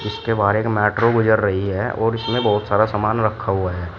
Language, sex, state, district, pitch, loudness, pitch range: Hindi, male, Uttar Pradesh, Shamli, 110 Hz, -19 LUFS, 100-115 Hz